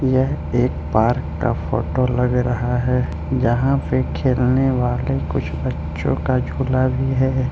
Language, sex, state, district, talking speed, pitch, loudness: Hindi, male, Arunachal Pradesh, Lower Dibang Valley, 145 wpm, 125 Hz, -20 LUFS